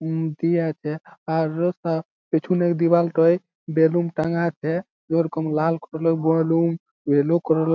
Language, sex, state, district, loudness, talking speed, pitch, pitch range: Bengali, male, West Bengal, Malda, -22 LUFS, 145 wpm, 165 Hz, 160-170 Hz